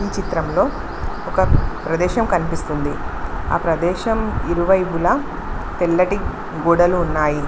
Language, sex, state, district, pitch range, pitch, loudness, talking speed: Telugu, female, Telangana, Mahabubabad, 155-180 Hz, 170 Hz, -20 LUFS, 90 wpm